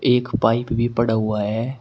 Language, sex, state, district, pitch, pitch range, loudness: Hindi, male, Uttar Pradesh, Shamli, 115 Hz, 110-120 Hz, -20 LUFS